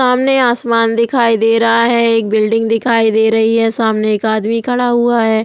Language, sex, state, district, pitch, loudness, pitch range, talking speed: Hindi, female, Bihar, Jahanabad, 230 Hz, -13 LUFS, 220-235 Hz, 200 wpm